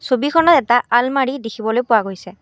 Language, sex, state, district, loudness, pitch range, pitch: Assamese, female, Assam, Kamrup Metropolitan, -16 LUFS, 225-265 Hz, 245 Hz